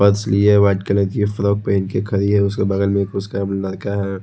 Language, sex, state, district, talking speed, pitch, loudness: Hindi, male, Odisha, Khordha, 240 wpm, 100 Hz, -18 LUFS